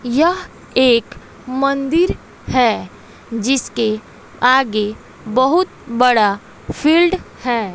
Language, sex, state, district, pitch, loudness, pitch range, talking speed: Hindi, female, Bihar, West Champaran, 255 Hz, -16 LUFS, 230-295 Hz, 75 wpm